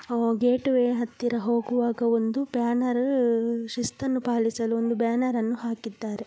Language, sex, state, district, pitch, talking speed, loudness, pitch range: Kannada, female, Karnataka, Dakshina Kannada, 235 Hz, 105 wpm, -25 LUFS, 230-245 Hz